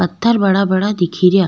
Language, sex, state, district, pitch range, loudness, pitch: Rajasthani, female, Rajasthan, Nagaur, 180-200 Hz, -15 LUFS, 195 Hz